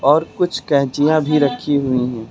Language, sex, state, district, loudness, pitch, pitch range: Hindi, male, Uttar Pradesh, Lucknow, -17 LUFS, 145 Hz, 130-150 Hz